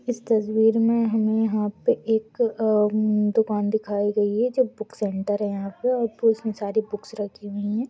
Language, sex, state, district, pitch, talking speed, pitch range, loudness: Hindi, female, Goa, North and South Goa, 220 Hz, 190 wpm, 210-225 Hz, -23 LUFS